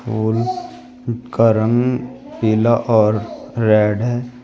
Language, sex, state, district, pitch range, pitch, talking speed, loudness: Hindi, male, Uttar Pradesh, Shamli, 110-125 Hz, 120 Hz, 95 wpm, -17 LUFS